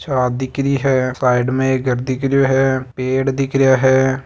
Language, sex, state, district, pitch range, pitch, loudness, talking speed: Marwari, male, Rajasthan, Nagaur, 130-135 Hz, 130 Hz, -16 LUFS, 170 wpm